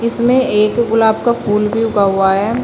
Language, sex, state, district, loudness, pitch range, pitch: Hindi, female, Uttar Pradesh, Shamli, -14 LUFS, 210-235 Hz, 225 Hz